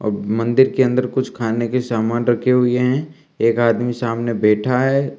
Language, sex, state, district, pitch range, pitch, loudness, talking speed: Hindi, male, Bihar, Kaimur, 115-130 Hz, 120 Hz, -18 LUFS, 185 wpm